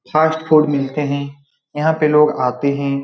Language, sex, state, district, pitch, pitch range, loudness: Hindi, male, Bihar, Saran, 145 Hz, 140-155 Hz, -16 LUFS